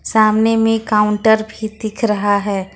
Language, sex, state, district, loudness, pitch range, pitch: Hindi, female, Jharkhand, Ranchi, -16 LUFS, 210-220 Hz, 215 Hz